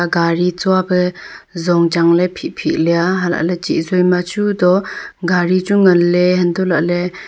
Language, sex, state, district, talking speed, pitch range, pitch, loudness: Wancho, female, Arunachal Pradesh, Longding, 150 wpm, 175-185 Hz, 180 Hz, -15 LUFS